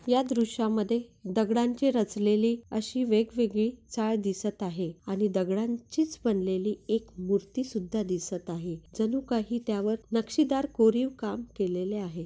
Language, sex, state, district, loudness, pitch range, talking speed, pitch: Marathi, female, Maharashtra, Nagpur, -29 LUFS, 195-235 Hz, 125 wpm, 220 Hz